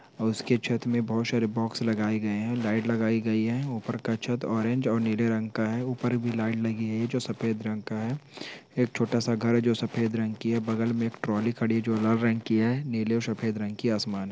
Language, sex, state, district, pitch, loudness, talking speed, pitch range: Hindi, male, Bihar, Sitamarhi, 115 Hz, -28 LUFS, 245 wpm, 110-120 Hz